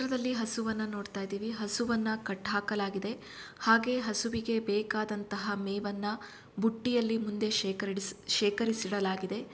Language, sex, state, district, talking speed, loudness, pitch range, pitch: Kannada, female, Karnataka, Shimoga, 105 wpm, -32 LUFS, 205-225 Hz, 210 Hz